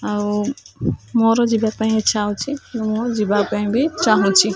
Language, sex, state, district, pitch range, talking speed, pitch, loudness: Odia, female, Odisha, Khordha, 210-235 Hz, 145 wpm, 220 Hz, -19 LUFS